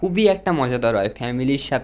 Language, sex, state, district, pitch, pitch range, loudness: Bengali, male, West Bengal, Jhargram, 130 Hz, 120-180 Hz, -20 LUFS